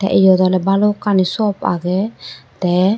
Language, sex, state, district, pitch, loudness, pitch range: Chakma, female, Tripura, Dhalai, 190 Hz, -16 LUFS, 185-205 Hz